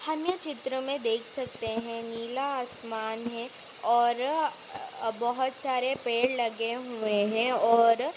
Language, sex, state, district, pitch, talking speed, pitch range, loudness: Hindi, female, Chhattisgarh, Balrampur, 245 Hz, 130 wpm, 230-270 Hz, -29 LUFS